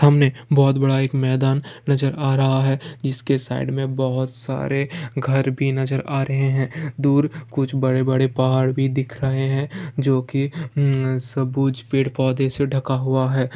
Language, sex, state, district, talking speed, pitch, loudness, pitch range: Hindi, male, Bihar, Jamui, 175 wpm, 135 Hz, -21 LUFS, 130-140 Hz